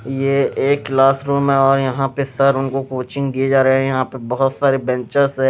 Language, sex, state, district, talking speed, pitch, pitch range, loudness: Hindi, male, Himachal Pradesh, Shimla, 230 wpm, 135 Hz, 130-140 Hz, -17 LUFS